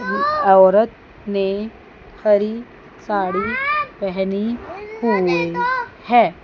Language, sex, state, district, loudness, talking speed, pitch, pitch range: Hindi, female, Chandigarh, Chandigarh, -18 LUFS, 65 wpm, 210 Hz, 195-245 Hz